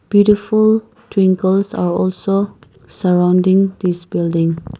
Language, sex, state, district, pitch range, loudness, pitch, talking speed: English, female, Nagaland, Kohima, 175-205 Hz, -15 LUFS, 185 Hz, 90 wpm